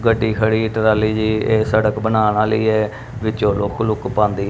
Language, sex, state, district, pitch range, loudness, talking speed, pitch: Punjabi, male, Punjab, Kapurthala, 105-110 Hz, -18 LUFS, 160 wpm, 110 Hz